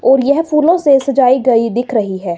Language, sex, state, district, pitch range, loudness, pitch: Hindi, female, Himachal Pradesh, Shimla, 230-280 Hz, -12 LUFS, 260 Hz